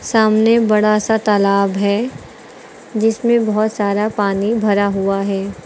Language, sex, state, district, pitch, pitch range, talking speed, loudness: Hindi, female, Uttar Pradesh, Lucknow, 210 Hz, 200-220 Hz, 125 wpm, -16 LUFS